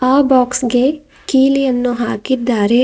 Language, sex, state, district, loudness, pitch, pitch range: Kannada, female, Karnataka, Bidar, -14 LUFS, 255 Hz, 245-270 Hz